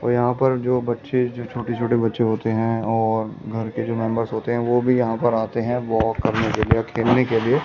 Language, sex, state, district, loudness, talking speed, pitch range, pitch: Hindi, male, Delhi, New Delhi, -21 LUFS, 235 wpm, 110-120 Hz, 115 Hz